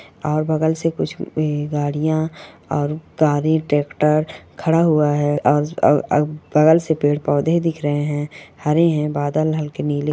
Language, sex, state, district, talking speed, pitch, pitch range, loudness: Hindi, female, Bihar, Purnia, 160 wpm, 150 Hz, 145-155 Hz, -19 LUFS